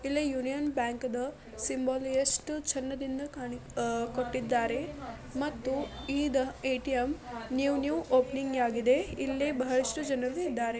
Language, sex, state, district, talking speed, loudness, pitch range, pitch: Kannada, female, Karnataka, Belgaum, 105 wpm, -32 LUFS, 250-280 Hz, 265 Hz